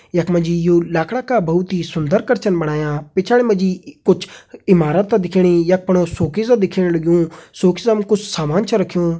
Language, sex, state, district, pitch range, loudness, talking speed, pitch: Hindi, male, Uttarakhand, Uttarkashi, 170-210 Hz, -17 LUFS, 175 wpm, 185 Hz